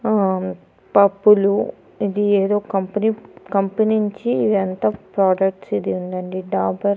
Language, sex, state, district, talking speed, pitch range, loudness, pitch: Telugu, female, Andhra Pradesh, Annamaya, 110 wpm, 185-205 Hz, -19 LUFS, 195 Hz